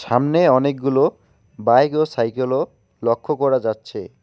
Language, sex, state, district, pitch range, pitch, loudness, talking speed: Bengali, male, West Bengal, Alipurduar, 115-145 Hz, 130 Hz, -19 LUFS, 115 wpm